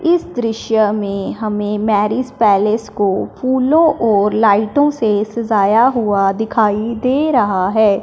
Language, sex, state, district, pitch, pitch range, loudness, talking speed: Hindi, male, Punjab, Fazilka, 215 Hz, 205-245 Hz, -15 LUFS, 125 wpm